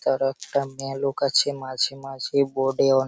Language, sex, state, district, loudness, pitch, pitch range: Bengali, male, West Bengal, Malda, -24 LUFS, 135 Hz, 135-140 Hz